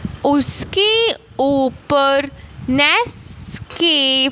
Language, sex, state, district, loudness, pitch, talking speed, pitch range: Hindi, male, Punjab, Fazilka, -15 LUFS, 280 Hz, 55 wpm, 270-340 Hz